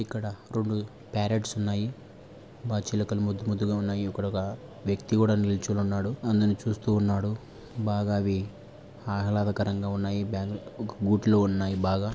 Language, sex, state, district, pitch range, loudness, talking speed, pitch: Telugu, male, Andhra Pradesh, Anantapur, 100-110 Hz, -28 LUFS, 135 wpm, 105 Hz